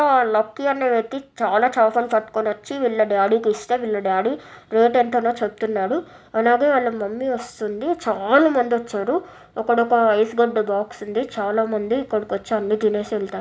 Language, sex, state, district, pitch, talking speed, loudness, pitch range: Telugu, male, Telangana, Nalgonda, 225 Hz, 150 wpm, -20 LUFS, 215-245 Hz